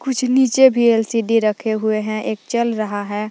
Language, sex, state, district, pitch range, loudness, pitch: Hindi, female, Jharkhand, Palamu, 215-240 Hz, -17 LUFS, 225 Hz